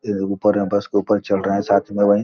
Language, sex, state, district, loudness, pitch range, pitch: Hindi, male, Bihar, Gopalganj, -19 LUFS, 100-105 Hz, 100 Hz